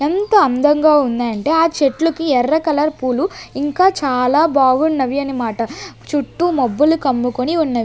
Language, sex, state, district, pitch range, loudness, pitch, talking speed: Telugu, female, Andhra Pradesh, Sri Satya Sai, 255-320 Hz, -16 LUFS, 290 Hz, 120 wpm